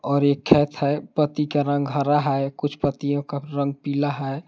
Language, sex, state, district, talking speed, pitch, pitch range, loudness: Hindi, male, Jharkhand, Palamu, 200 wpm, 145 Hz, 140-145 Hz, -23 LUFS